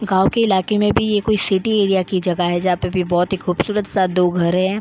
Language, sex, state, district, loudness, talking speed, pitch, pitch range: Hindi, female, Goa, North and South Goa, -18 LUFS, 275 wpm, 190 Hz, 180-210 Hz